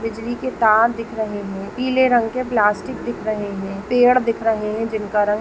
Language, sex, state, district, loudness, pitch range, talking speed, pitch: Hindi, male, West Bengal, Purulia, -19 LUFS, 210-240 Hz, 210 wpm, 225 Hz